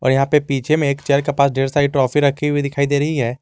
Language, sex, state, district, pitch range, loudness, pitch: Hindi, male, Jharkhand, Garhwa, 135-145 Hz, -17 LUFS, 140 Hz